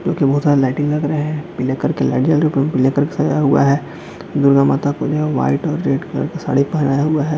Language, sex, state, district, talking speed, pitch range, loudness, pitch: Hindi, male, Jharkhand, Jamtara, 235 wpm, 140-150 Hz, -16 LUFS, 145 Hz